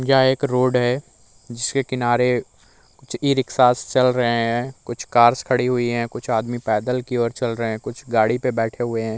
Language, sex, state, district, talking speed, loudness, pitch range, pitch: Hindi, male, Uttar Pradesh, Muzaffarnagar, 205 wpm, -20 LUFS, 115-125 Hz, 120 Hz